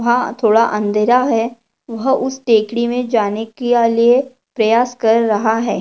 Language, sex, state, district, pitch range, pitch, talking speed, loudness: Hindi, female, Maharashtra, Pune, 225-245 Hz, 230 Hz, 155 wpm, -15 LUFS